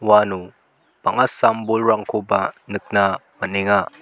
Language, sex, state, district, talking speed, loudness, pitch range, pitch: Garo, male, Meghalaya, South Garo Hills, 75 wpm, -19 LUFS, 100-110 Hz, 105 Hz